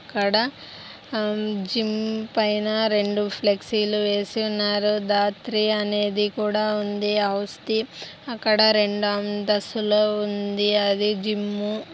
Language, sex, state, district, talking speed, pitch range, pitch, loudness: Telugu, female, Andhra Pradesh, Anantapur, 80 wpm, 205-215 Hz, 210 Hz, -23 LUFS